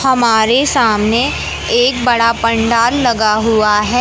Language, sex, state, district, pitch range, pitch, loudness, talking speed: Hindi, male, Madhya Pradesh, Katni, 220-245 Hz, 230 Hz, -12 LUFS, 120 wpm